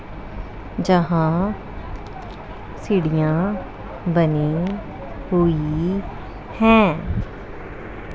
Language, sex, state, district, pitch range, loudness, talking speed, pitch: Hindi, female, Punjab, Pathankot, 150-190 Hz, -20 LUFS, 45 wpm, 165 Hz